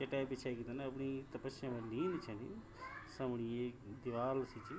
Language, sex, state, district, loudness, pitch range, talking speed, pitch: Garhwali, male, Uttarakhand, Tehri Garhwal, -44 LUFS, 120-135 Hz, 175 wpm, 130 Hz